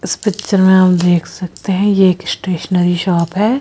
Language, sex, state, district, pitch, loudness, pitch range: Hindi, female, Rajasthan, Jaipur, 185 Hz, -14 LUFS, 175-195 Hz